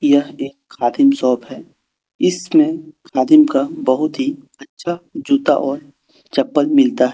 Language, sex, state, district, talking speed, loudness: Hindi, male, Jharkhand, Deoghar, 135 wpm, -16 LUFS